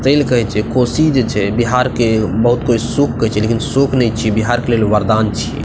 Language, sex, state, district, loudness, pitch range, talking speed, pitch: Maithili, male, Bihar, Madhepura, -14 LUFS, 110-125 Hz, 275 wpm, 120 Hz